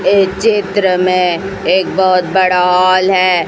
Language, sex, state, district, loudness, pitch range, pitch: Hindi, female, Chhattisgarh, Raipur, -12 LUFS, 180-195 Hz, 185 Hz